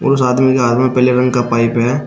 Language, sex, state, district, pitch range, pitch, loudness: Hindi, male, Uttar Pradesh, Shamli, 120-130 Hz, 125 Hz, -13 LUFS